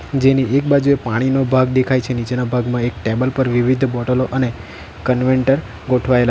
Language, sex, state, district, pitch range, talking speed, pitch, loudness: Gujarati, male, Gujarat, Valsad, 120-130 Hz, 170 wpm, 125 Hz, -17 LUFS